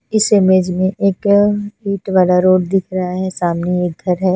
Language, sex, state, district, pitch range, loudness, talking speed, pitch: Hindi, female, Punjab, Fazilka, 180-200 Hz, -15 LUFS, 205 wpm, 185 Hz